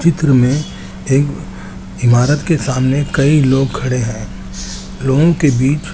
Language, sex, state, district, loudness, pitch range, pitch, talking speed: Hindi, male, Chandigarh, Chandigarh, -14 LUFS, 120-145 Hz, 135 Hz, 130 wpm